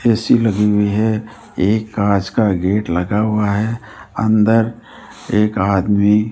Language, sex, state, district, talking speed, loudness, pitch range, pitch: Hindi, male, Rajasthan, Jaipur, 140 wpm, -16 LUFS, 100-110 Hz, 105 Hz